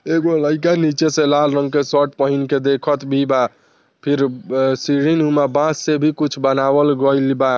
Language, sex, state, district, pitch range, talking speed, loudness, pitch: Bhojpuri, male, Bihar, Saran, 135-150 Hz, 175 wpm, -17 LUFS, 145 Hz